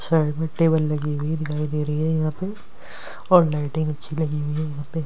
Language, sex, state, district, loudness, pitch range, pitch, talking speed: Hindi, male, Delhi, New Delhi, -23 LUFS, 150-160 Hz, 155 Hz, 235 wpm